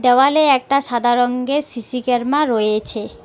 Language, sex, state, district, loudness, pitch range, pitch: Bengali, female, West Bengal, Alipurduar, -17 LUFS, 240-275 Hz, 250 Hz